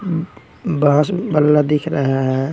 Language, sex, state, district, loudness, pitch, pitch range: Hindi, male, Bihar, Patna, -17 LUFS, 150 Hz, 140-165 Hz